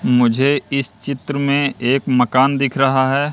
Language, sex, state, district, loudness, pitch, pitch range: Hindi, male, Madhya Pradesh, Katni, -17 LUFS, 135 Hz, 130-140 Hz